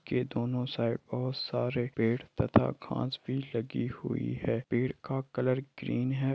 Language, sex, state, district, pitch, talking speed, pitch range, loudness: Hindi, male, Jharkhand, Sahebganj, 125 Hz, 140 wpm, 120-135 Hz, -32 LUFS